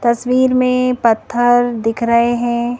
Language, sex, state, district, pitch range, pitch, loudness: Hindi, female, Madhya Pradesh, Bhopal, 235-250 Hz, 240 Hz, -15 LUFS